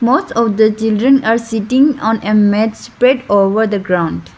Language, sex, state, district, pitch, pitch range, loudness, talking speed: English, female, Arunachal Pradesh, Lower Dibang Valley, 220 Hz, 210-240 Hz, -13 LUFS, 180 wpm